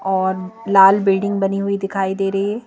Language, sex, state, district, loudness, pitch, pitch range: Hindi, female, Madhya Pradesh, Bhopal, -17 LUFS, 195 Hz, 190-200 Hz